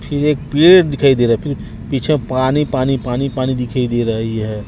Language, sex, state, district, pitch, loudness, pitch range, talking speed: Hindi, male, Chhattisgarh, Raipur, 130 Hz, -15 LUFS, 120-145 Hz, 220 wpm